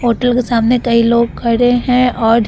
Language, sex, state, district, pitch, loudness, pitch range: Hindi, female, Bihar, Vaishali, 240 Hz, -13 LUFS, 230-245 Hz